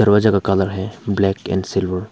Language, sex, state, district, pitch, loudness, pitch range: Hindi, male, Arunachal Pradesh, Papum Pare, 95 Hz, -19 LUFS, 95-105 Hz